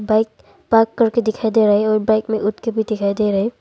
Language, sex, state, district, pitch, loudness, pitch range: Hindi, female, Arunachal Pradesh, Longding, 220 Hz, -18 LUFS, 210-225 Hz